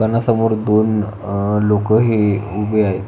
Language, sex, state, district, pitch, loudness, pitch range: Marathi, male, Maharashtra, Pune, 105 Hz, -16 LUFS, 105-110 Hz